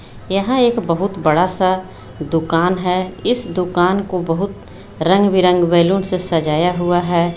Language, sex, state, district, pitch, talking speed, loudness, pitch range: Hindi, female, Jharkhand, Garhwa, 180 Hz, 155 wpm, -16 LUFS, 165-190 Hz